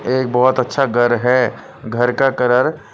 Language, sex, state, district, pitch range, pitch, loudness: Hindi, male, Punjab, Pathankot, 120-130 Hz, 125 Hz, -16 LUFS